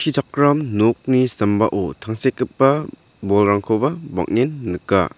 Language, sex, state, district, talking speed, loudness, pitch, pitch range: Garo, male, Meghalaya, South Garo Hills, 70 wpm, -19 LUFS, 125 Hz, 105-140 Hz